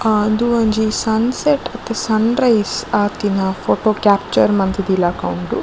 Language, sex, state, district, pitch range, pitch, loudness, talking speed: Tulu, female, Karnataka, Dakshina Kannada, 195-225 Hz, 215 Hz, -16 LUFS, 115 wpm